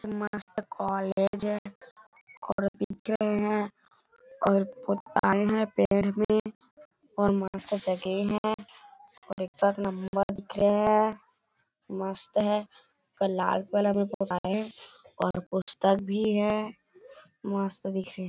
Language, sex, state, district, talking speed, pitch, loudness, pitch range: Hindi, male, Chhattisgarh, Bilaspur, 120 wpm, 205 Hz, -29 LUFS, 195-215 Hz